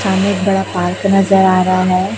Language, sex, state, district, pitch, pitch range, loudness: Hindi, female, Chhattisgarh, Raipur, 190 Hz, 185-195 Hz, -13 LUFS